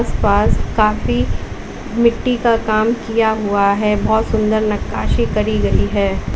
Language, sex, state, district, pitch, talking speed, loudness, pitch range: Hindi, female, Uttar Pradesh, Lalitpur, 215 Hz, 130 wpm, -16 LUFS, 200-225 Hz